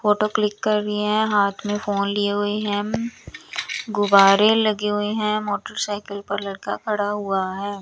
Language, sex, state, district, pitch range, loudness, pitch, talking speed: Hindi, female, Chandigarh, Chandigarh, 200-210 Hz, -21 LUFS, 205 Hz, 160 wpm